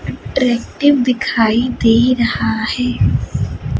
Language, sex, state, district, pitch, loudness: Hindi, female, Chhattisgarh, Raipur, 230 Hz, -15 LUFS